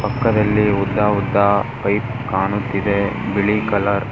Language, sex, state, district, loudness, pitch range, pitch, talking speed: Kannada, male, Karnataka, Dharwad, -18 LUFS, 100-105 Hz, 105 Hz, 100 wpm